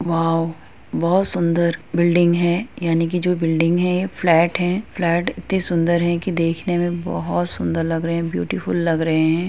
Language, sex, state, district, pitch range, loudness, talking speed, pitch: Hindi, female, Uttar Pradesh, Etah, 165-175 Hz, -20 LUFS, 185 wpm, 170 Hz